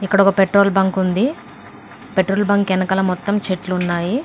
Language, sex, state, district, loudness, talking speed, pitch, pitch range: Telugu, female, Andhra Pradesh, Anantapur, -17 LUFS, 140 wpm, 195 Hz, 185-200 Hz